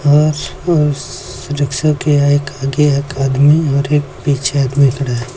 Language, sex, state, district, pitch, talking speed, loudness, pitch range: Hindi, male, Uttar Pradesh, Lucknow, 140 Hz, 155 wpm, -14 LUFS, 135-145 Hz